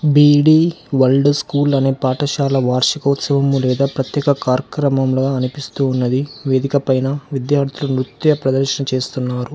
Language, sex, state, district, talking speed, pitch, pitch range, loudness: Telugu, male, Telangana, Hyderabad, 105 wpm, 135 Hz, 130-145 Hz, -16 LUFS